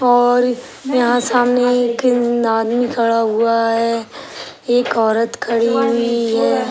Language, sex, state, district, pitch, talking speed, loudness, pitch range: Hindi, female, Uttar Pradesh, Gorakhpur, 235 Hz, 105 wpm, -16 LUFS, 230-245 Hz